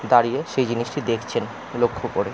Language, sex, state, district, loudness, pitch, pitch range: Bengali, male, West Bengal, Jalpaiguri, -23 LUFS, 120 Hz, 115-125 Hz